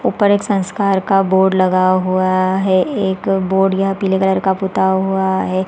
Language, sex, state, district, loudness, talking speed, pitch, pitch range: Hindi, female, Chhattisgarh, Balrampur, -15 LUFS, 170 wpm, 190 Hz, 190-195 Hz